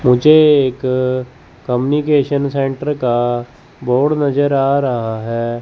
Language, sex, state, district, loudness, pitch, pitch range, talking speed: Hindi, male, Chandigarh, Chandigarh, -15 LUFS, 130 Hz, 125-145 Hz, 105 wpm